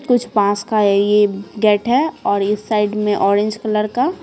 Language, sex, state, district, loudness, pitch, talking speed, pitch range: Hindi, female, Bihar, Patna, -17 LUFS, 210 Hz, 215 wpm, 205-225 Hz